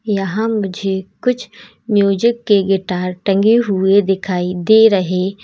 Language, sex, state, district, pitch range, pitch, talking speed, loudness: Hindi, female, Uttar Pradesh, Lalitpur, 190-220 Hz, 195 Hz, 120 wpm, -15 LUFS